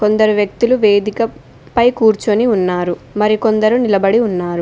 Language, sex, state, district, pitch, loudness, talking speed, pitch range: Telugu, female, Telangana, Mahabubabad, 215 Hz, -14 LUFS, 130 wpm, 200-225 Hz